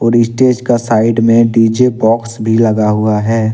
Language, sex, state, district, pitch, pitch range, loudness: Hindi, male, Jharkhand, Deoghar, 115 Hz, 110-115 Hz, -11 LUFS